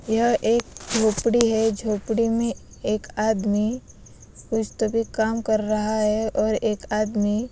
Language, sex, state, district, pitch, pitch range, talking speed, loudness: Hindi, female, Bihar, West Champaran, 220 Hz, 215-230 Hz, 145 wpm, -23 LUFS